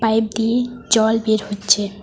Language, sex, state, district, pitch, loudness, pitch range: Bengali, female, West Bengal, Alipurduar, 220 Hz, -18 LUFS, 205-225 Hz